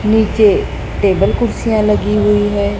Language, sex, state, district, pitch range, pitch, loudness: Hindi, male, Madhya Pradesh, Dhar, 205-215 Hz, 210 Hz, -14 LUFS